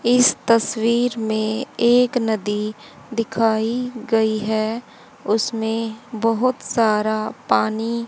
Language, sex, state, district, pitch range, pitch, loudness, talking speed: Hindi, female, Haryana, Jhajjar, 220-240 Hz, 225 Hz, -20 LUFS, 90 wpm